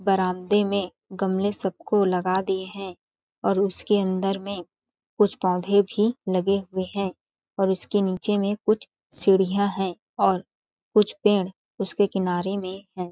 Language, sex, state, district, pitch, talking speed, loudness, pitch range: Hindi, female, Chhattisgarh, Balrampur, 195 Hz, 145 wpm, -24 LUFS, 185-200 Hz